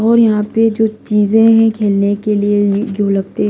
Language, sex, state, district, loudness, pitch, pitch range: Hindi, female, Delhi, New Delhi, -13 LUFS, 210 Hz, 205-225 Hz